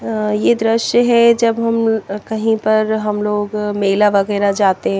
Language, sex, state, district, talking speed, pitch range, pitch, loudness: Hindi, female, Chandigarh, Chandigarh, 155 wpm, 200-225 Hz, 210 Hz, -15 LUFS